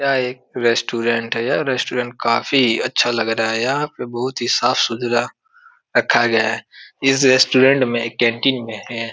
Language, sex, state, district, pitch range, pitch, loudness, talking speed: Hindi, male, Uttar Pradesh, Etah, 115-135 Hz, 120 Hz, -18 LUFS, 170 wpm